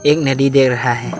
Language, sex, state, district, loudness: Hindi, male, Arunachal Pradesh, Lower Dibang Valley, -14 LUFS